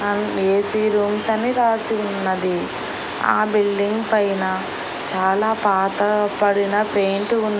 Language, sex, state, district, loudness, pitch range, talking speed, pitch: Telugu, female, Andhra Pradesh, Annamaya, -20 LUFS, 195-215 Hz, 105 wpm, 205 Hz